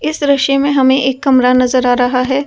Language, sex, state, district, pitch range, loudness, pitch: Hindi, female, Delhi, New Delhi, 255-280 Hz, -12 LUFS, 265 Hz